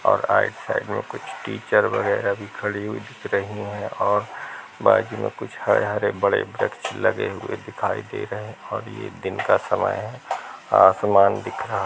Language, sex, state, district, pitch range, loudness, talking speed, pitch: Hindi, male, Chhattisgarh, Rajnandgaon, 100-105 Hz, -23 LUFS, 185 wpm, 105 Hz